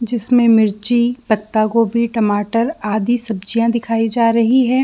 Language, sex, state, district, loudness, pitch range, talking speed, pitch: Hindi, female, Jharkhand, Jamtara, -16 LUFS, 215-235 Hz, 135 wpm, 230 Hz